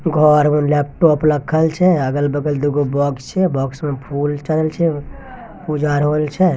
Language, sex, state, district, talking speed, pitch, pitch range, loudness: Angika, male, Bihar, Begusarai, 175 wpm, 150 Hz, 145-160 Hz, -17 LUFS